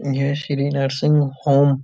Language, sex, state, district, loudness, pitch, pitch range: Hindi, male, Uttar Pradesh, Budaun, -19 LUFS, 140 Hz, 135-145 Hz